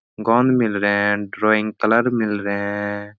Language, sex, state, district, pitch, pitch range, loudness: Hindi, male, Uttar Pradesh, Etah, 105 Hz, 105-115 Hz, -19 LUFS